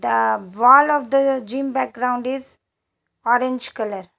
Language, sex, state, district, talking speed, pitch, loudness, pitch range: English, female, Telangana, Hyderabad, 130 wpm, 250 Hz, -19 LUFS, 220-270 Hz